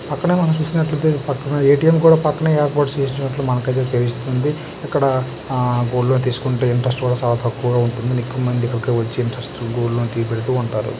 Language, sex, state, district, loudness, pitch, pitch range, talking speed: Telugu, male, Andhra Pradesh, Guntur, -19 LUFS, 130 Hz, 120-145 Hz, 160 wpm